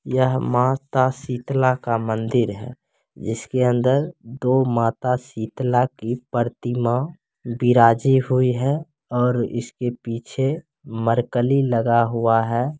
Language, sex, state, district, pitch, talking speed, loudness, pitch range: Angika, male, Bihar, Begusarai, 125 Hz, 110 wpm, -21 LUFS, 115-130 Hz